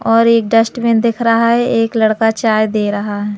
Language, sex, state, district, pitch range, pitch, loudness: Hindi, female, Madhya Pradesh, Katni, 215-230 Hz, 225 Hz, -13 LUFS